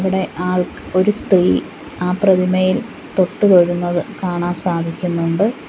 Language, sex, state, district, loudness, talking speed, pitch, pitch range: Malayalam, female, Kerala, Kollam, -17 LUFS, 95 wpm, 180 Hz, 175-190 Hz